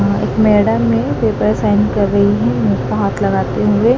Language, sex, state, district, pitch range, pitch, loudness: Hindi, male, Madhya Pradesh, Dhar, 105-140 Hz, 110 Hz, -14 LUFS